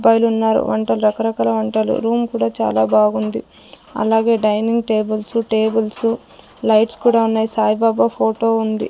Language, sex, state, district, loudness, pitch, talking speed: Telugu, female, Andhra Pradesh, Sri Satya Sai, -17 LUFS, 220 Hz, 120 wpm